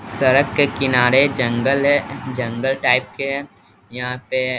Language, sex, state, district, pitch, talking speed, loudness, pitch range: Hindi, male, Bihar, East Champaran, 130 Hz, 145 wpm, -18 LUFS, 125-135 Hz